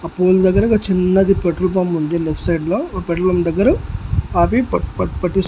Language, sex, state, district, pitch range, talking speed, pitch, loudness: Telugu, male, Andhra Pradesh, Annamaya, 170-190 Hz, 210 wpm, 180 Hz, -17 LUFS